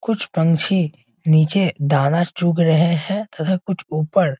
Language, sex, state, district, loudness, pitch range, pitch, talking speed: Hindi, male, Bihar, Sitamarhi, -18 LUFS, 155-190 Hz, 170 Hz, 150 wpm